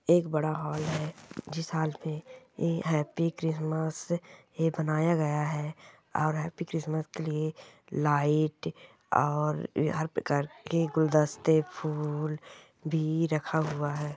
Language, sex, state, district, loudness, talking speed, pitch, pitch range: Hindi, female, Chhattisgarh, Raigarh, -30 LUFS, 125 wpm, 155 Hz, 150-160 Hz